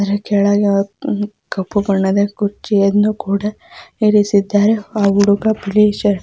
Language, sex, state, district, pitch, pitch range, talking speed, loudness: Kannada, female, Karnataka, Mysore, 205 Hz, 200-210 Hz, 125 wpm, -15 LUFS